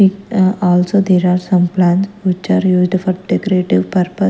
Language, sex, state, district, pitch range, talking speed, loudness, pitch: English, female, Punjab, Kapurthala, 180-195 Hz, 180 wpm, -14 LUFS, 185 Hz